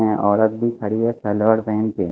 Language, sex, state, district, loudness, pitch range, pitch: Hindi, male, Maharashtra, Mumbai Suburban, -19 LUFS, 105-110 Hz, 110 Hz